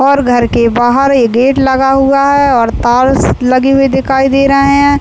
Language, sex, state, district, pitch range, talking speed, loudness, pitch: Hindi, female, Uttar Pradesh, Deoria, 250-275 Hz, 205 wpm, -9 LUFS, 270 Hz